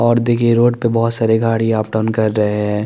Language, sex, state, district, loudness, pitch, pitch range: Hindi, male, Chandigarh, Chandigarh, -15 LUFS, 115 Hz, 110-115 Hz